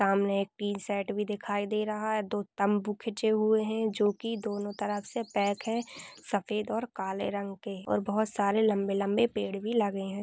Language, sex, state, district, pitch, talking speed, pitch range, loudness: Hindi, female, Maharashtra, Aurangabad, 205 Hz, 200 wpm, 200-220 Hz, -31 LUFS